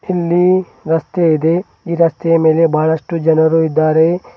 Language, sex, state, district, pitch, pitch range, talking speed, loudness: Kannada, male, Karnataka, Bidar, 165 Hz, 160-170 Hz, 125 wpm, -14 LUFS